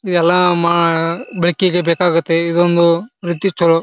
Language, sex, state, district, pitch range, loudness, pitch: Kannada, male, Karnataka, Bijapur, 170-180 Hz, -14 LUFS, 170 Hz